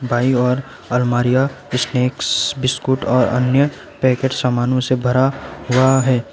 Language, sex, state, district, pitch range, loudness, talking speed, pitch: Hindi, male, West Bengal, Alipurduar, 125-130 Hz, -17 LUFS, 125 wpm, 130 Hz